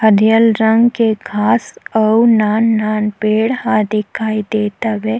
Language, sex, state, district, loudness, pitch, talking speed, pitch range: Chhattisgarhi, female, Chhattisgarh, Sukma, -14 LUFS, 220 Hz, 125 wpm, 215-225 Hz